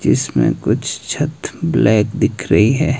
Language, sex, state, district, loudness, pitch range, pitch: Hindi, male, Himachal Pradesh, Shimla, -16 LUFS, 105-130 Hz, 110 Hz